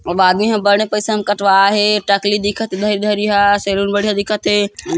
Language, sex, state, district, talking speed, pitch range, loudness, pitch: Hindi, male, Chhattisgarh, Kabirdham, 190 wpm, 200-210 Hz, -15 LUFS, 205 Hz